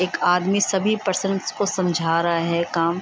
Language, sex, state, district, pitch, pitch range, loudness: Hindi, female, Bihar, Sitamarhi, 180 Hz, 170-195 Hz, -21 LUFS